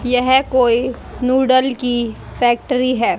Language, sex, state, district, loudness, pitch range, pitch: Hindi, female, Haryana, Rohtak, -16 LUFS, 245-260 Hz, 250 Hz